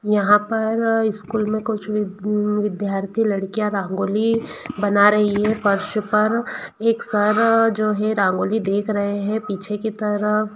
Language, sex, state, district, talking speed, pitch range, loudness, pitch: Hindi, female, Bihar, East Champaran, 135 wpm, 205-220 Hz, -20 LUFS, 210 Hz